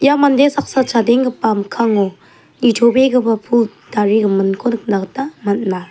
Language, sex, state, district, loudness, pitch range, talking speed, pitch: Garo, female, Meghalaya, South Garo Hills, -15 LUFS, 205-260 Hz, 110 wpm, 230 Hz